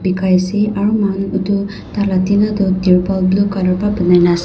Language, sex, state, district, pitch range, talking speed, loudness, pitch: Nagamese, female, Nagaland, Dimapur, 185-200 Hz, 200 wpm, -15 LUFS, 195 Hz